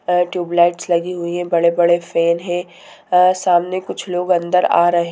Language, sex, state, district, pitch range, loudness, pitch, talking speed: Hindi, female, Bihar, Sitamarhi, 170-180 Hz, -17 LUFS, 175 Hz, 175 wpm